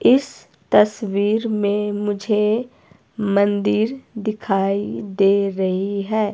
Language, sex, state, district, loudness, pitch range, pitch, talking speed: Hindi, female, Himachal Pradesh, Shimla, -20 LUFS, 200-215 Hz, 205 Hz, 85 wpm